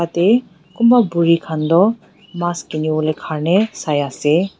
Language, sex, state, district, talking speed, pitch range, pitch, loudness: Nagamese, female, Nagaland, Dimapur, 130 wpm, 155-195 Hz, 170 Hz, -17 LUFS